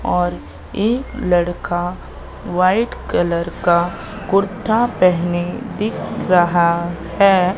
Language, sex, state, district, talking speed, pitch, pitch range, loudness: Hindi, female, Madhya Pradesh, Katni, 85 wpm, 180 Hz, 175-200 Hz, -18 LUFS